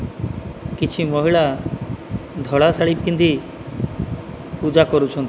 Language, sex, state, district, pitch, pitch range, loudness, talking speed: Odia, male, Odisha, Malkangiri, 155 Hz, 135-165 Hz, -20 LUFS, 80 wpm